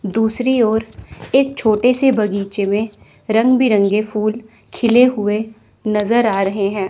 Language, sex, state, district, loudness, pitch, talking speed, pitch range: Hindi, female, Chandigarh, Chandigarh, -16 LUFS, 220 Hz, 140 wpm, 210-240 Hz